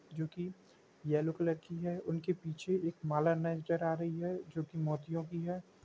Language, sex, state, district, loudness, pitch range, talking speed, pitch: Hindi, male, Chhattisgarh, Rajnandgaon, -37 LUFS, 160-175 Hz, 195 wpm, 165 Hz